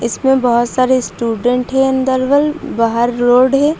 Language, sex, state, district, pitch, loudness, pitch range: Hindi, female, Uttar Pradesh, Lucknow, 255 Hz, -14 LUFS, 240-265 Hz